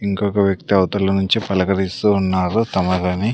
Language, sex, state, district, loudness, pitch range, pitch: Telugu, male, Andhra Pradesh, Sri Satya Sai, -18 LUFS, 95-100 Hz, 95 Hz